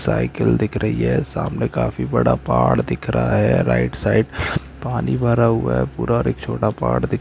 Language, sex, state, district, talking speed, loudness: Hindi, male, Andhra Pradesh, Anantapur, 200 wpm, -19 LUFS